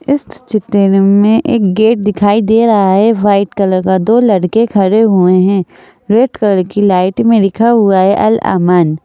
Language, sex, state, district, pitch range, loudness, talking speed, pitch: Hindi, female, Madhya Pradesh, Bhopal, 190-225 Hz, -10 LUFS, 180 wpm, 205 Hz